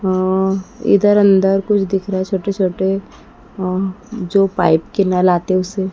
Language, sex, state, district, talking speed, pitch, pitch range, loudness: Hindi, female, Madhya Pradesh, Dhar, 160 wpm, 195 Hz, 185-195 Hz, -16 LUFS